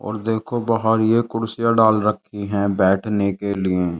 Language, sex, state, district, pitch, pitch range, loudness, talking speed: Hindi, male, Uttar Pradesh, Jyotiba Phule Nagar, 105 Hz, 100-115 Hz, -19 LUFS, 180 wpm